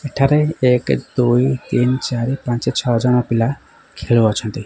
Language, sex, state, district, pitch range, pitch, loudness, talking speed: Odia, male, Odisha, Khordha, 120-135 Hz, 125 Hz, -17 LUFS, 130 wpm